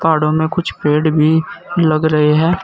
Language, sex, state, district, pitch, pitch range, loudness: Hindi, male, Uttar Pradesh, Saharanpur, 155 Hz, 155-165 Hz, -14 LUFS